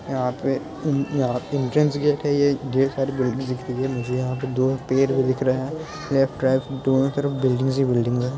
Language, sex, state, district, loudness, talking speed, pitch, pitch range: Hindi, male, Bihar, Muzaffarpur, -22 LUFS, 220 wpm, 135 Hz, 130-140 Hz